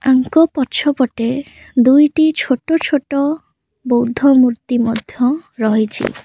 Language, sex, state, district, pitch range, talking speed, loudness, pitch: Odia, female, Odisha, Khordha, 245-290 Hz, 95 wpm, -15 LUFS, 260 Hz